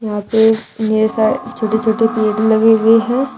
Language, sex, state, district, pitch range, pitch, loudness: Hindi, female, Uttar Pradesh, Shamli, 220-225 Hz, 220 Hz, -14 LUFS